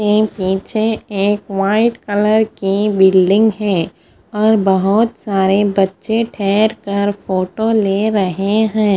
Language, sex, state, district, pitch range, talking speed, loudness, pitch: Hindi, female, Punjab, Fazilka, 195-220 Hz, 120 wpm, -15 LUFS, 205 Hz